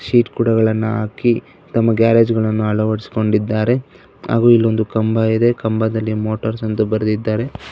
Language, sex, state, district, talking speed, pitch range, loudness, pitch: Kannada, male, Karnataka, Bangalore, 115 wpm, 110-115 Hz, -17 LUFS, 110 Hz